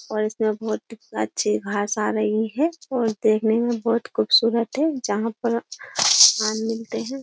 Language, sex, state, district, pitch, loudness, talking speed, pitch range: Hindi, female, Uttar Pradesh, Jyotiba Phule Nagar, 225 Hz, -21 LUFS, 155 wpm, 215-235 Hz